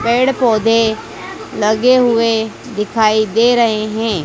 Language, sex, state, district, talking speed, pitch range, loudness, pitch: Hindi, female, Madhya Pradesh, Dhar, 115 wpm, 215-235 Hz, -14 LUFS, 225 Hz